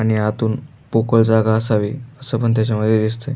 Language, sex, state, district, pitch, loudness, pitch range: Marathi, male, Maharashtra, Aurangabad, 110 Hz, -18 LUFS, 110-120 Hz